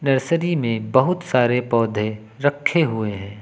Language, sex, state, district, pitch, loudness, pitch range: Hindi, male, Uttar Pradesh, Lucknow, 125 Hz, -20 LUFS, 110-145 Hz